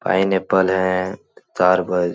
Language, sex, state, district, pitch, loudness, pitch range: Hindi, male, Bihar, Jahanabad, 95 Hz, -18 LUFS, 90-95 Hz